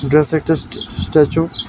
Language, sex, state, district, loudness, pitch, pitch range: Bengali, male, Tripura, West Tripura, -16 LUFS, 155 Hz, 145-160 Hz